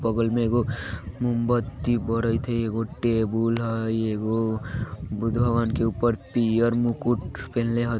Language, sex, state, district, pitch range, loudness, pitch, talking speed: Hindi, male, Bihar, Vaishali, 110-120 Hz, -25 LUFS, 115 Hz, 125 wpm